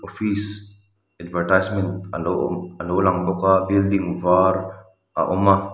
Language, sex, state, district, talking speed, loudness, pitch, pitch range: Mizo, male, Mizoram, Aizawl, 155 wpm, -21 LUFS, 95 Hz, 90-100 Hz